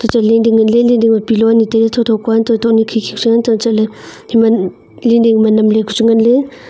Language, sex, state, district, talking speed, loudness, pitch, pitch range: Wancho, female, Arunachal Pradesh, Longding, 235 wpm, -12 LUFS, 225 Hz, 220-230 Hz